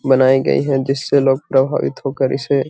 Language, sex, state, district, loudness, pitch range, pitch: Magahi, male, Bihar, Gaya, -16 LUFS, 135-140 Hz, 135 Hz